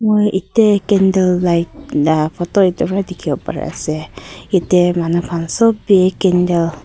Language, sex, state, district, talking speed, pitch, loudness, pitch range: Nagamese, female, Nagaland, Kohima, 150 wpm, 180 Hz, -15 LUFS, 170-195 Hz